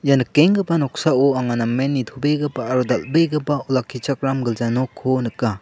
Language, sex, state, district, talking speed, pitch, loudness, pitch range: Garo, male, Meghalaya, South Garo Hills, 130 wpm, 135 Hz, -20 LUFS, 125-145 Hz